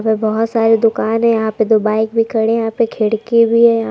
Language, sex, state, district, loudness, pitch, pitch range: Hindi, female, Jharkhand, Palamu, -14 LUFS, 225 Hz, 220-230 Hz